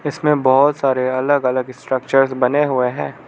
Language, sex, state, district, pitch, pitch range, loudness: Hindi, male, Arunachal Pradesh, Lower Dibang Valley, 130 Hz, 130-145 Hz, -17 LUFS